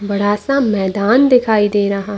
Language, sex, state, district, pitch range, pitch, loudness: Hindi, female, Chhattisgarh, Bastar, 200-230 Hz, 205 Hz, -14 LUFS